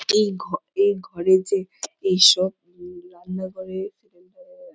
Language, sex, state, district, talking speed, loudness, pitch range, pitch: Bengali, female, West Bengal, Purulia, 140 wpm, -21 LUFS, 185-200 Hz, 185 Hz